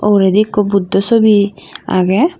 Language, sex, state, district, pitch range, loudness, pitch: Chakma, female, Tripura, Dhalai, 195-215 Hz, -12 LUFS, 205 Hz